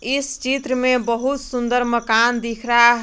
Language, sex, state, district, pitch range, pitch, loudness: Hindi, female, Jharkhand, Garhwa, 235-260 Hz, 245 Hz, -19 LUFS